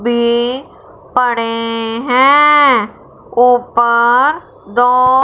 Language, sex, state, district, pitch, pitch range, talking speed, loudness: Hindi, female, Punjab, Fazilka, 245 Hz, 235-260 Hz, 55 wpm, -12 LUFS